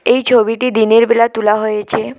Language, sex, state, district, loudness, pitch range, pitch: Bengali, female, West Bengal, Alipurduar, -13 LUFS, 220-240 Hz, 230 Hz